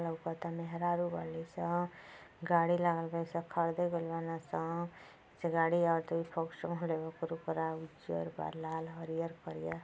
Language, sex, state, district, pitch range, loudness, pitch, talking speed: Hindi, female, Uttar Pradesh, Deoria, 160-170 Hz, -37 LUFS, 165 Hz, 135 wpm